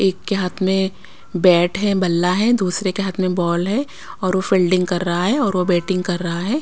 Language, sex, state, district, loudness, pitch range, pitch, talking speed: Hindi, female, Bihar, West Champaran, -18 LUFS, 180-195 Hz, 185 Hz, 225 wpm